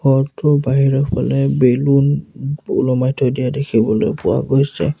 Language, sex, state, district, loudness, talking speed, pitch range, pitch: Assamese, male, Assam, Sonitpur, -16 LUFS, 120 wpm, 125-140 Hz, 135 Hz